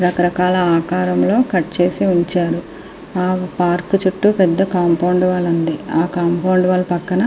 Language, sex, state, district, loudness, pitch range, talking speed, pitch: Telugu, female, Andhra Pradesh, Srikakulam, -16 LUFS, 175-185 Hz, 130 wpm, 180 Hz